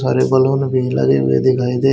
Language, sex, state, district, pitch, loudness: Hindi, male, Haryana, Charkhi Dadri, 125 Hz, -15 LUFS